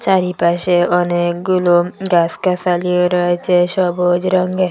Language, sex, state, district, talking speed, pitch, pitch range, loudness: Bengali, female, Assam, Hailakandi, 90 wpm, 180 Hz, 175-185 Hz, -15 LUFS